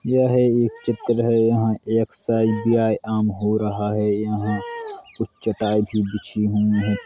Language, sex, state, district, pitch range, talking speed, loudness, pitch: Hindi, male, Uttar Pradesh, Hamirpur, 105-115 Hz, 170 wpm, -21 LUFS, 110 Hz